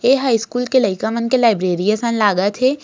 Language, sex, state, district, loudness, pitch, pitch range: Hindi, female, Chhattisgarh, Raigarh, -17 LUFS, 230 Hz, 205-255 Hz